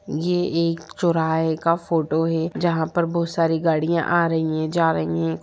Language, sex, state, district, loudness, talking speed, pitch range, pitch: Hindi, female, Bihar, Sitamarhi, -21 LUFS, 200 wpm, 160-170 Hz, 165 Hz